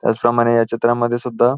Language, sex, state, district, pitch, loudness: Marathi, male, Maharashtra, Pune, 120 Hz, -17 LUFS